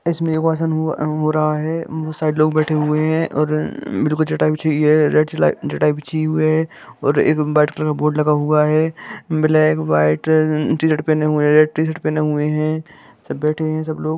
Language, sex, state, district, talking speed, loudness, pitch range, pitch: Hindi, male, Jharkhand, Jamtara, 235 wpm, -17 LUFS, 150-155 Hz, 155 Hz